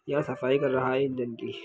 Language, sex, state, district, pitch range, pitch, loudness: Hindi, male, Bihar, Lakhisarai, 125-135 Hz, 130 Hz, -28 LUFS